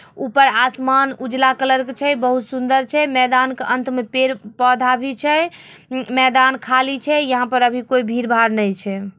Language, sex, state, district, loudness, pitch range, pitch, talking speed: Magahi, female, Bihar, Samastipur, -17 LUFS, 250-265 Hz, 260 Hz, 190 wpm